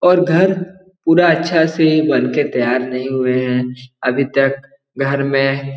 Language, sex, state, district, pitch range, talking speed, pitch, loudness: Hindi, male, Bihar, Jahanabad, 130-165 Hz, 155 wpm, 135 Hz, -16 LUFS